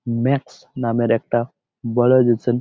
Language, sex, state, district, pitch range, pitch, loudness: Bengali, male, West Bengal, Malda, 115-130 Hz, 120 Hz, -19 LUFS